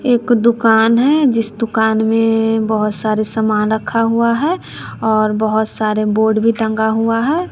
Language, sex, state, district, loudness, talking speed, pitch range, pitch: Hindi, male, Bihar, West Champaran, -15 LUFS, 160 wpm, 220-230 Hz, 225 Hz